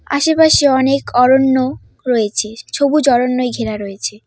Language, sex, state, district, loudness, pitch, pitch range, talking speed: Bengali, female, West Bengal, Cooch Behar, -14 LUFS, 255 Hz, 225-280 Hz, 110 wpm